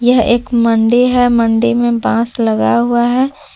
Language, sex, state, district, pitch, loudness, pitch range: Hindi, female, Jharkhand, Palamu, 240 Hz, -12 LUFS, 230-245 Hz